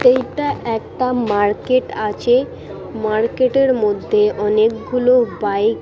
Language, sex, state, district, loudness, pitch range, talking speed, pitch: Bengali, female, West Bengal, Purulia, -17 LUFS, 215-255 Hz, 105 wpm, 240 Hz